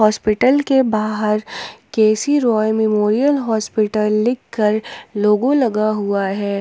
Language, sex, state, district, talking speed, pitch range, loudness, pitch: Hindi, female, Jharkhand, Ranchi, 110 wpm, 210-240 Hz, -17 LUFS, 215 Hz